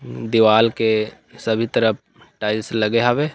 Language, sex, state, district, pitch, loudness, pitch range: Chhattisgarhi, male, Chhattisgarh, Rajnandgaon, 110 Hz, -19 LUFS, 110-115 Hz